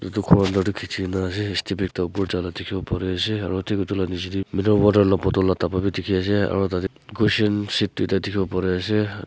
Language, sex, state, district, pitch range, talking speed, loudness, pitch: Nagamese, male, Nagaland, Kohima, 95-105 Hz, 240 wpm, -22 LUFS, 95 Hz